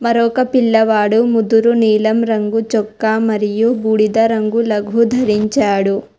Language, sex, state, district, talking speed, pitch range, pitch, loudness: Telugu, female, Telangana, Hyderabad, 115 wpm, 215-230 Hz, 220 Hz, -14 LUFS